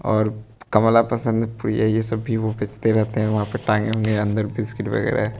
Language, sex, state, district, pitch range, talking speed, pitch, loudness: Hindi, male, Bihar, West Champaran, 105-115 Hz, 190 wpm, 110 Hz, -21 LUFS